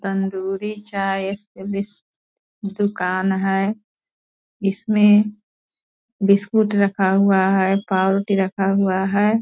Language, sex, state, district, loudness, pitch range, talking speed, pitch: Hindi, female, Bihar, Purnia, -19 LUFS, 195-205 Hz, 95 wpm, 195 Hz